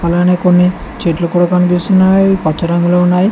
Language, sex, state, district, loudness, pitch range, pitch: Telugu, male, Telangana, Mahabubabad, -12 LUFS, 175-185 Hz, 180 Hz